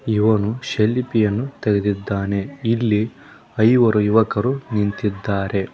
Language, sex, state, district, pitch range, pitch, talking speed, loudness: Kannada, male, Karnataka, Koppal, 100-115 Hz, 110 Hz, 85 wpm, -19 LUFS